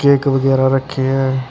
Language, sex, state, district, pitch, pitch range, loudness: Punjabi, male, Karnataka, Bangalore, 135 Hz, 130-135 Hz, -15 LUFS